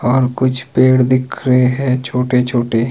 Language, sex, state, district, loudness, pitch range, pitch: Hindi, male, Himachal Pradesh, Shimla, -14 LUFS, 125-130 Hz, 125 Hz